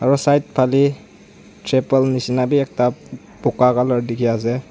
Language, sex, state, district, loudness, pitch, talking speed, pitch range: Nagamese, male, Nagaland, Dimapur, -18 LUFS, 125 Hz, 140 wpm, 125-135 Hz